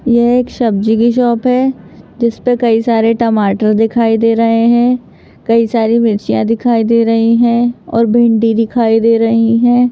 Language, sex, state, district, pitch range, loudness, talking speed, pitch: Hindi, female, Madhya Pradesh, Bhopal, 225-240 Hz, -12 LUFS, 170 wpm, 230 Hz